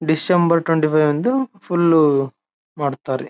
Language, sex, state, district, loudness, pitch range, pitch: Kannada, male, Karnataka, Bellary, -18 LUFS, 140-175 Hz, 155 Hz